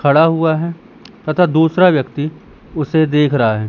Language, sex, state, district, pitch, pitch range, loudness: Hindi, male, Madhya Pradesh, Katni, 160 Hz, 150-170 Hz, -15 LUFS